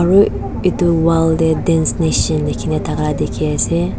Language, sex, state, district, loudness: Nagamese, female, Nagaland, Dimapur, -16 LUFS